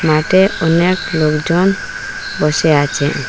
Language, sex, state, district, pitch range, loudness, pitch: Bengali, female, Assam, Hailakandi, 150-180 Hz, -14 LUFS, 160 Hz